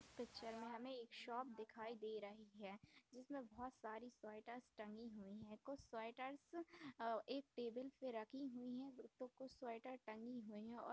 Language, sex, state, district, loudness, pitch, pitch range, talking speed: Hindi, female, Bihar, Bhagalpur, -54 LUFS, 235 Hz, 220-260 Hz, 170 wpm